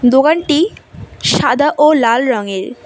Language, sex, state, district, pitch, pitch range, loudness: Bengali, female, West Bengal, Cooch Behar, 280 Hz, 240-305 Hz, -13 LUFS